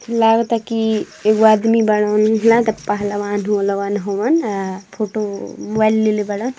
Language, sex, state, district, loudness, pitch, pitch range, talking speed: Hindi, female, Uttar Pradesh, Ghazipur, -17 LUFS, 215 Hz, 205-225 Hz, 135 wpm